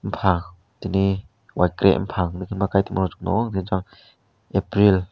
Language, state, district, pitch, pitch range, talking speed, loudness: Kokborok, Tripura, West Tripura, 95 Hz, 95-100 Hz, 70 wpm, -22 LUFS